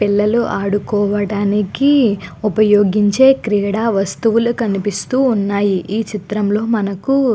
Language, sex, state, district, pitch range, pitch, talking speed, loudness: Telugu, female, Andhra Pradesh, Guntur, 205-225 Hz, 210 Hz, 100 wpm, -16 LUFS